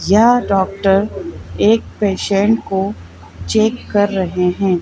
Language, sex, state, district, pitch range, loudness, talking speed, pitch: Hindi, female, Madhya Pradesh, Bhopal, 185-210 Hz, -16 LUFS, 110 wpm, 195 Hz